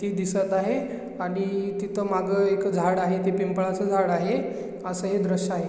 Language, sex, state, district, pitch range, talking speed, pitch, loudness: Marathi, male, Maharashtra, Chandrapur, 185-200 Hz, 180 wpm, 195 Hz, -25 LUFS